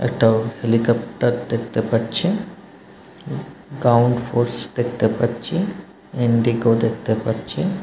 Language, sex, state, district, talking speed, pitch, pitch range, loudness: Bengali, male, West Bengal, North 24 Parganas, 85 wpm, 120 Hz, 115-120 Hz, -20 LUFS